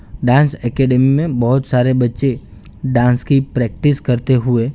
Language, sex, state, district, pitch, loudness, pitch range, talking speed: Hindi, male, Gujarat, Gandhinagar, 130 Hz, -15 LUFS, 120-135 Hz, 140 wpm